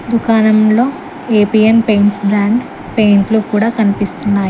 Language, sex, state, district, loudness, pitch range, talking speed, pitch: Telugu, female, Telangana, Mahabubabad, -12 LUFS, 205-225 Hz, 95 wpm, 215 Hz